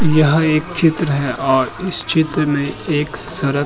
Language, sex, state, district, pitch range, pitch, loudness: Hindi, male, Uttar Pradesh, Muzaffarnagar, 140-160 Hz, 155 Hz, -15 LUFS